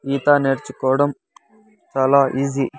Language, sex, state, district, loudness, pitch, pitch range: Telugu, male, Andhra Pradesh, Sri Satya Sai, -19 LUFS, 140 Hz, 135-145 Hz